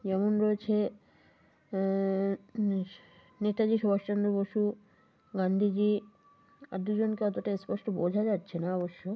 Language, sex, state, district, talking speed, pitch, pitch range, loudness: Bengali, female, West Bengal, North 24 Parganas, 120 wpm, 200 Hz, 190-210 Hz, -31 LUFS